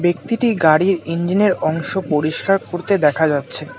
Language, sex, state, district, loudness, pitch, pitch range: Bengali, male, West Bengal, Alipurduar, -17 LUFS, 175 Hz, 155-195 Hz